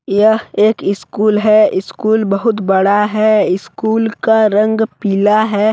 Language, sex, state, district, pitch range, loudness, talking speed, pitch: Hindi, male, Jharkhand, Deoghar, 200-220 Hz, -13 LUFS, 135 wpm, 215 Hz